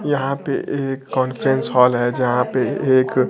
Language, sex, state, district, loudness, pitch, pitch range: Hindi, male, Bihar, Kaimur, -19 LUFS, 130 Hz, 125-135 Hz